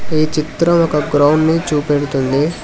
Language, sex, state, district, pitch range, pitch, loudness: Telugu, male, Telangana, Hyderabad, 145-160 Hz, 155 Hz, -15 LUFS